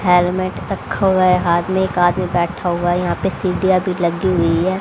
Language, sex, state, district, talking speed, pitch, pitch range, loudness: Hindi, female, Haryana, Rohtak, 225 wpm, 180 Hz, 175-185 Hz, -17 LUFS